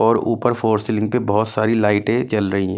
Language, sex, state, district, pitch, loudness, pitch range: Hindi, male, Delhi, New Delhi, 110 Hz, -19 LUFS, 105-115 Hz